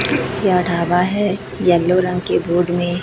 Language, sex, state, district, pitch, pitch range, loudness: Hindi, female, Chhattisgarh, Raipur, 180 Hz, 175-185 Hz, -17 LUFS